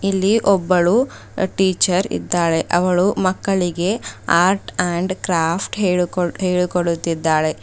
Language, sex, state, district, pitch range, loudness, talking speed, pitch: Kannada, female, Karnataka, Bidar, 175-190 Hz, -18 LUFS, 85 wpm, 180 Hz